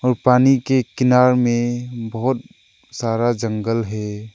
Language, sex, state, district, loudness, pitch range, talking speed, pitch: Hindi, male, Arunachal Pradesh, Lower Dibang Valley, -18 LUFS, 115-125 Hz, 110 wpm, 120 Hz